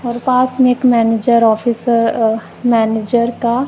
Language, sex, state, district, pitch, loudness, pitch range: Hindi, male, Punjab, Kapurthala, 235 Hz, -14 LUFS, 225-245 Hz